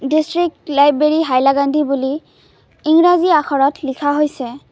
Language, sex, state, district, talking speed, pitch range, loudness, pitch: Assamese, female, Assam, Kamrup Metropolitan, 100 wpm, 275-310 Hz, -15 LUFS, 290 Hz